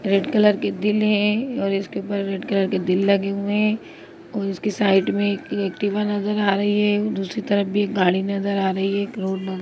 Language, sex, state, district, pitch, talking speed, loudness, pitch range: Hindi, female, Bihar, Muzaffarpur, 200 Hz, 225 wpm, -21 LUFS, 195-210 Hz